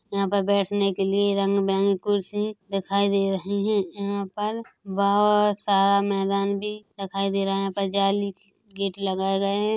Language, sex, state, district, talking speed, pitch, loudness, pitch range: Hindi, female, Chhattisgarh, Korba, 170 wpm, 200 Hz, -24 LUFS, 195-205 Hz